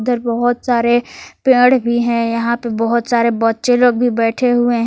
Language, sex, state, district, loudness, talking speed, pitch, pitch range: Hindi, female, Jharkhand, Palamu, -15 LUFS, 185 wpm, 240 Hz, 235-245 Hz